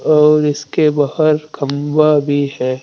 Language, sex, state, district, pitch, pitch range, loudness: Hindi, male, Uttar Pradesh, Saharanpur, 150 Hz, 145-155 Hz, -14 LUFS